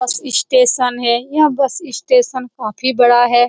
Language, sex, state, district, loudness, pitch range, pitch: Hindi, female, Bihar, Saran, -14 LUFS, 245-305 Hz, 255 Hz